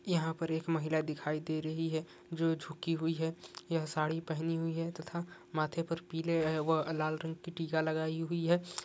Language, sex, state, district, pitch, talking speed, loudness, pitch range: Hindi, male, Jharkhand, Jamtara, 160 Hz, 195 wpm, -35 LUFS, 160-165 Hz